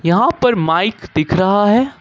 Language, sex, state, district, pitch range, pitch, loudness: Hindi, male, Jharkhand, Ranchi, 170-230 Hz, 200 Hz, -15 LUFS